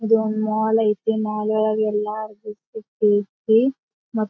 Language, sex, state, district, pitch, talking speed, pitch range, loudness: Kannada, female, Karnataka, Bijapur, 215 Hz, 85 wpm, 210-220 Hz, -21 LUFS